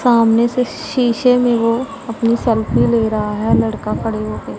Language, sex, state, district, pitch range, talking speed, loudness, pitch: Hindi, female, Punjab, Pathankot, 215-245 Hz, 185 wpm, -16 LUFS, 230 Hz